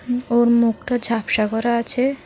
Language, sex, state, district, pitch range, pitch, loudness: Bengali, female, Tripura, South Tripura, 230-245 Hz, 235 Hz, -18 LUFS